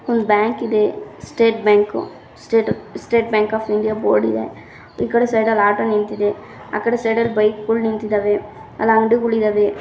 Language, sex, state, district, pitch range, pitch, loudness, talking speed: Kannada, female, Karnataka, Raichur, 210-225 Hz, 215 Hz, -18 LUFS, 170 wpm